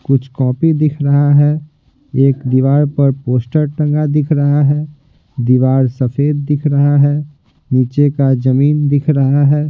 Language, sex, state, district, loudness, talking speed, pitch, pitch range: Hindi, male, Bihar, Patna, -13 LUFS, 150 wpm, 145 Hz, 135-150 Hz